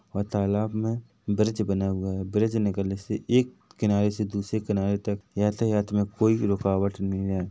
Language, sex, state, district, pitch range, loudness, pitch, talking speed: Hindi, male, Chhattisgarh, Rajnandgaon, 100-110 Hz, -26 LUFS, 105 Hz, 185 wpm